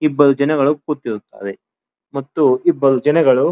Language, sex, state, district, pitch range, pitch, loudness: Kannada, male, Karnataka, Dharwad, 135-150 Hz, 140 Hz, -16 LUFS